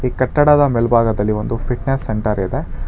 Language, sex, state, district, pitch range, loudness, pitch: Kannada, male, Karnataka, Bangalore, 105-135 Hz, -17 LUFS, 115 Hz